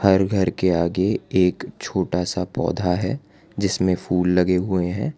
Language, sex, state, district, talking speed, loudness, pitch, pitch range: Hindi, male, Gujarat, Valsad, 160 wpm, -21 LUFS, 90 Hz, 90-100 Hz